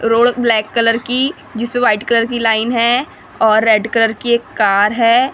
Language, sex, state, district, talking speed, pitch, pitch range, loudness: Hindi, female, Maharashtra, Gondia, 200 wpm, 230 Hz, 225-240 Hz, -14 LUFS